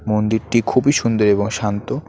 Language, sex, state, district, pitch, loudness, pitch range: Bengali, male, West Bengal, Alipurduar, 110 Hz, -17 LUFS, 105-115 Hz